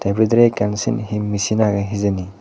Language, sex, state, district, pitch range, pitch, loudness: Chakma, male, Tripura, Dhalai, 100-110 Hz, 105 Hz, -18 LUFS